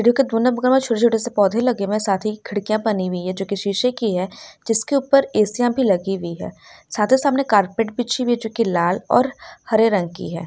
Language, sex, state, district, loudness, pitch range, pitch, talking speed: Hindi, female, Uttar Pradesh, Ghazipur, -19 LUFS, 200-245 Hz, 220 Hz, 220 wpm